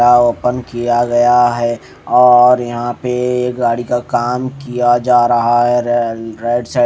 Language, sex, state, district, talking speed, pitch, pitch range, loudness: Hindi, male, Haryana, Charkhi Dadri, 160 wpm, 120 Hz, 120-125 Hz, -14 LUFS